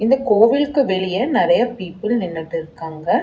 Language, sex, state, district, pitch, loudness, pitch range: Tamil, female, Tamil Nadu, Chennai, 215 Hz, -18 LUFS, 170-245 Hz